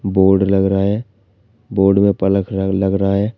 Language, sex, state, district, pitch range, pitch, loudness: Hindi, male, Uttar Pradesh, Shamli, 95-100 Hz, 100 Hz, -16 LUFS